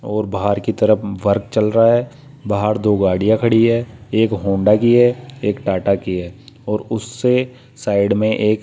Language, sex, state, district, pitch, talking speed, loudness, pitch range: Hindi, male, Rajasthan, Jaipur, 110 Hz, 190 wpm, -17 LUFS, 100-120 Hz